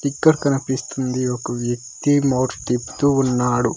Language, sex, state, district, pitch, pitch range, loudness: Telugu, male, Andhra Pradesh, Manyam, 130 Hz, 125-140 Hz, -20 LUFS